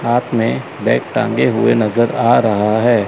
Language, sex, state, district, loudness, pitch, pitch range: Hindi, male, Chandigarh, Chandigarh, -15 LUFS, 115 Hz, 110-120 Hz